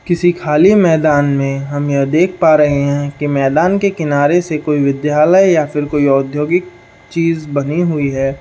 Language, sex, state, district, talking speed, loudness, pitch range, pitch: Hindi, male, Bihar, Saharsa, 185 wpm, -13 LUFS, 140-170 Hz, 150 Hz